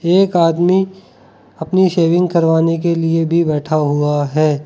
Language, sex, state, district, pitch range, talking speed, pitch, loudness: Hindi, male, Arunachal Pradesh, Lower Dibang Valley, 155-180 Hz, 140 wpm, 165 Hz, -15 LUFS